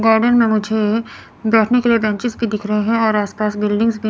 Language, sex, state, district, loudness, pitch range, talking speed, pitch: Hindi, female, Chandigarh, Chandigarh, -17 LUFS, 210-230 Hz, 235 wpm, 220 Hz